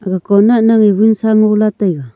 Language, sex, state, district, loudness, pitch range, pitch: Wancho, female, Arunachal Pradesh, Longding, -11 LUFS, 200-220 Hz, 215 Hz